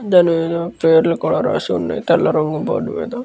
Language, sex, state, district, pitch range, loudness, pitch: Telugu, male, Andhra Pradesh, Krishna, 160-175 Hz, -17 LUFS, 170 Hz